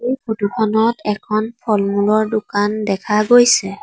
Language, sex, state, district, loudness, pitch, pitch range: Assamese, female, Assam, Sonitpur, -16 LUFS, 215 Hz, 205-225 Hz